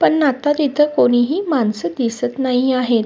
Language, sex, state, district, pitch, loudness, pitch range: Marathi, female, Maharashtra, Sindhudurg, 255 Hz, -17 LUFS, 240-295 Hz